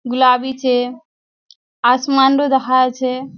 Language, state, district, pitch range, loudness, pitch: Surjapuri, Bihar, Kishanganj, 250-265 Hz, -15 LUFS, 255 Hz